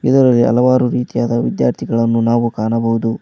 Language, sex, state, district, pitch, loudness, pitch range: Kannada, male, Karnataka, Koppal, 115 Hz, -15 LUFS, 115-120 Hz